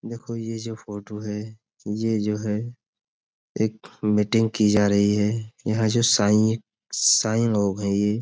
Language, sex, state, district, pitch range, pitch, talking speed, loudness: Hindi, male, Uttar Pradesh, Budaun, 105-115 Hz, 110 Hz, 160 wpm, -23 LUFS